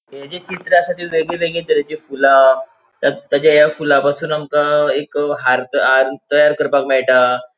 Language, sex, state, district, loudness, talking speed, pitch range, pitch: Konkani, male, Goa, North and South Goa, -15 LUFS, 140 wpm, 135-165 Hz, 145 Hz